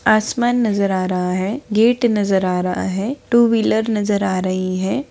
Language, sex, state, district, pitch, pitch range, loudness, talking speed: Hindi, female, Bihar, Saharsa, 205 Hz, 185-235 Hz, -18 LUFS, 190 wpm